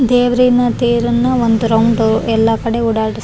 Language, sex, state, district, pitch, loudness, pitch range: Kannada, female, Karnataka, Raichur, 235 Hz, -13 LUFS, 225-245 Hz